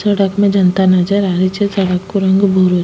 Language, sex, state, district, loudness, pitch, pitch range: Rajasthani, female, Rajasthan, Nagaur, -13 LUFS, 190 Hz, 185-200 Hz